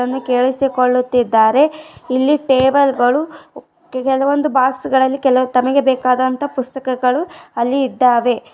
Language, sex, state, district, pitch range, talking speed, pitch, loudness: Kannada, female, Karnataka, Dharwad, 250-275 Hz, 105 wpm, 260 Hz, -15 LUFS